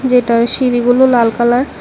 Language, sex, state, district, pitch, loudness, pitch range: Bengali, female, Tripura, West Tripura, 245 Hz, -12 LUFS, 235-255 Hz